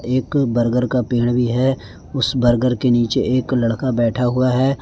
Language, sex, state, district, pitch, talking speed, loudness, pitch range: Hindi, male, Jharkhand, Palamu, 125 Hz, 185 wpm, -18 LUFS, 120-130 Hz